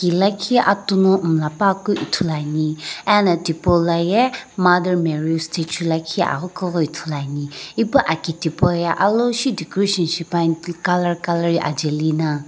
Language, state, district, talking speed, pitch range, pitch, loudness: Sumi, Nagaland, Dimapur, 145 wpm, 160-190 Hz, 170 Hz, -19 LUFS